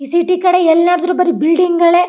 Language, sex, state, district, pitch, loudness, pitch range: Kannada, female, Karnataka, Chamarajanagar, 350 Hz, -12 LUFS, 335-360 Hz